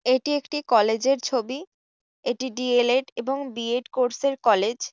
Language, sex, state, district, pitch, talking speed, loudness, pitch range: Bengali, female, West Bengal, Jhargram, 255 Hz, 160 wpm, -24 LUFS, 245-270 Hz